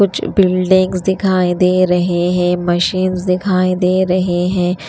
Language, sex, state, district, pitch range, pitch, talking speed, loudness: Hindi, female, Haryana, Rohtak, 180-185 Hz, 185 Hz, 135 wpm, -14 LUFS